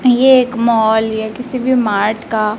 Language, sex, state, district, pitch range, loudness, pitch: Hindi, male, Madhya Pradesh, Dhar, 220-250 Hz, -14 LUFS, 230 Hz